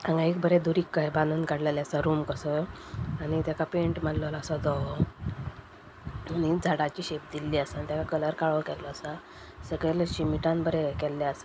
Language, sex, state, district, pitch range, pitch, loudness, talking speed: Konkani, female, Goa, North and South Goa, 150-160 Hz, 155 Hz, -29 LUFS, 175 wpm